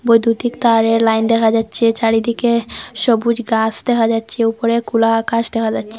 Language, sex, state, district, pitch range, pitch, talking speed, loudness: Bengali, female, Assam, Hailakandi, 225-235 Hz, 230 Hz, 150 wpm, -16 LUFS